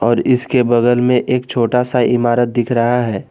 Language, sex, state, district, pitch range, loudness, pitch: Hindi, male, Jharkhand, Garhwa, 120-125 Hz, -15 LUFS, 120 Hz